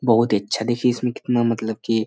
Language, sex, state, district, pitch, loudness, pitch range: Hindi, male, Bihar, Jamui, 115 Hz, -21 LUFS, 110-120 Hz